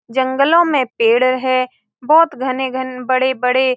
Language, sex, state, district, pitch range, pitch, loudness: Hindi, female, Bihar, Saran, 255-265 Hz, 260 Hz, -15 LUFS